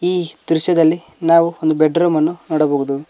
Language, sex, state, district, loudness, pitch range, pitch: Kannada, male, Karnataka, Koppal, -15 LUFS, 155-170 Hz, 160 Hz